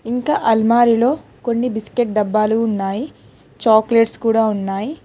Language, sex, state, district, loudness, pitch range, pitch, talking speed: Telugu, female, Telangana, Hyderabad, -17 LUFS, 215-240 Hz, 225 Hz, 105 wpm